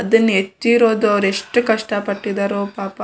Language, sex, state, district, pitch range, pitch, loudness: Kannada, female, Karnataka, Shimoga, 200-225 Hz, 205 Hz, -17 LUFS